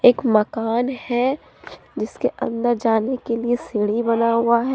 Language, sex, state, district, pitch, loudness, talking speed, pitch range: Hindi, female, Jharkhand, Deoghar, 235 Hz, -21 LUFS, 140 wpm, 230-245 Hz